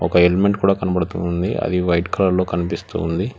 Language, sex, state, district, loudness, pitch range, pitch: Telugu, male, Telangana, Hyderabad, -19 LUFS, 85-95 Hz, 90 Hz